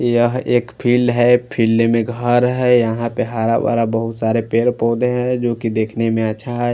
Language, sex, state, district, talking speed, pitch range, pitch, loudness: Hindi, male, Punjab, Fazilka, 205 wpm, 115-120 Hz, 120 Hz, -17 LUFS